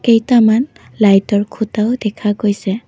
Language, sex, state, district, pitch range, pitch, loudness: Assamese, female, Assam, Kamrup Metropolitan, 205-230 Hz, 215 Hz, -14 LUFS